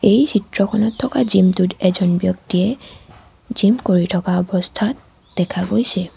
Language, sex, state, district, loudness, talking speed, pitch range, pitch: Assamese, female, Assam, Sonitpur, -17 LUFS, 125 wpm, 185-220 Hz, 195 Hz